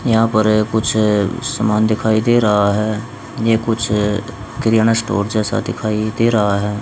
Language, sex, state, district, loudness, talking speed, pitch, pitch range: Hindi, male, Haryana, Rohtak, -16 LUFS, 150 wpm, 110 Hz, 105-115 Hz